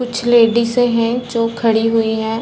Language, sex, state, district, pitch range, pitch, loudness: Hindi, female, Chhattisgarh, Balrampur, 225-240 Hz, 230 Hz, -15 LUFS